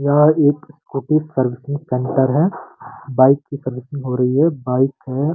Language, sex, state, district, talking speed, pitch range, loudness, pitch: Hindi, male, Uttarakhand, Uttarkashi, 155 wpm, 130-150 Hz, -18 LUFS, 140 Hz